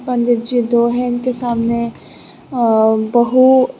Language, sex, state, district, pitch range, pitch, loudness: Hindi, female, Tripura, West Tripura, 235-250 Hz, 240 Hz, -15 LUFS